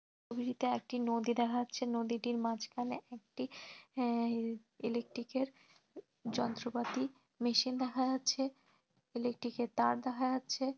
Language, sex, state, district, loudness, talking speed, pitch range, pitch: Bengali, female, West Bengal, Dakshin Dinajpur, -37 LUFS, 110 wpm, 235-255 Hz, 245 Hz